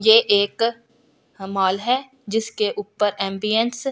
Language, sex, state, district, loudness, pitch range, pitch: Hindi, female, Delhi, New Delhi, -21 LUFS, 205-250 Hz, 225 Hz